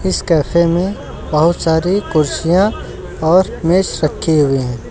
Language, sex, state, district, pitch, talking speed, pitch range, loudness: Hindi, male, Uttar Pradesh, Lucknow, 165 Hz, 120 wpm, 155-185 Hz, -15 LUFS